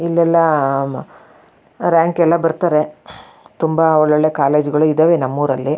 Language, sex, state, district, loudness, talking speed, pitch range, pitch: Kannada, female, Karnataka, Shimoga, -15 LUFS, 125 wpm, 150-165 Hz, 155 Hz